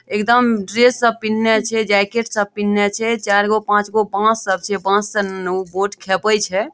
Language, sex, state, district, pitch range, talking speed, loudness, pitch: Maithili, female, Bihar, Madhepura, 200-225 Hz, 195 wpm, -17 LUFS, 210 Hz